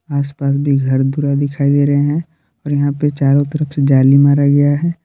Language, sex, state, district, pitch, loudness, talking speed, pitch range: Hindi, male, Jharkhand, Palamu, 145 Hz, -14 LUFS, 215 wpm, 140-145 Hz